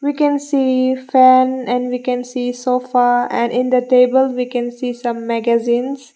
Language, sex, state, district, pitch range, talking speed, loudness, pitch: English, female, Mizoram, Aizawl, 245-260 Hz, 175 wpm, -16 LUFS, 250 Hz